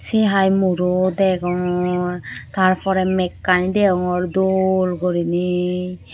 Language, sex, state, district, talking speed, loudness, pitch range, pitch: Chakma, female, Tripura, Unakoti, 100 wpm, -19 LUFS, 180-190 Hz, 180 Hz